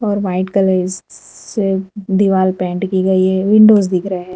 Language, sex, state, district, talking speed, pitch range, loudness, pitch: Hindi, female, Gujarat, Valsad, 205 wpm, 185-200 Hz, -14 LUFS, 190 Hz